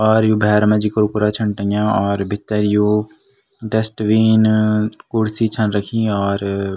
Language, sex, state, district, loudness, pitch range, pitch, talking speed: Garhwali, male, Uttarakhand, Tehri Garhwal, -17 LUFS, 105-110 Hz, 105 Hz, 150 wpm